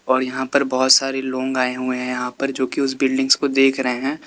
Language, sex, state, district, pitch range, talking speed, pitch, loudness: Hindi, male, Uttar Pradesh, Lalitpur, 130-135 Hz, 265 wpm, 130 Hz, -19 LUFS